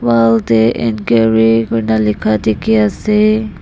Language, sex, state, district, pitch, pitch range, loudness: Nagamese, female, Nagaland, Dimapur, 115 Hz, 110-115 Hz, -13 LUFS